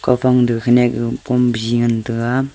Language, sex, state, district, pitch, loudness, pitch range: Wancho, male, Arunachal Pradesh, Longding, 120 Hz, -16 LUFS, 115-125 Hz